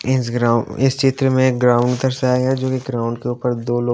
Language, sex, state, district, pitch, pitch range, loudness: Hindi, male, Haryana, Jhajjar, 125 Hz, 120-130 Hz, -18 LUFS